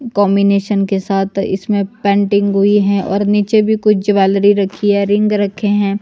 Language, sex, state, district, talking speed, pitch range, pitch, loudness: Hindi, female, Himachal Pradesh, Shimla, 170 wpm, 200-205 Hz, 200 Hz, -14 LUFS